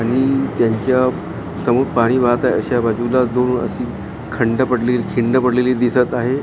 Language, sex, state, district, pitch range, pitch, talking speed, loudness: Marathi, male, Maharashtra, Gondia, 120-130 Hz, 125 Hz, 150 wpm, -17 LUFS